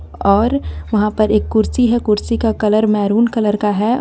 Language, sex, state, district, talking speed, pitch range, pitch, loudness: Hindi, female, Jharkhand, Garhwa, 195 wpm, 205-225 Hz, 215 Hz, -15 LUFS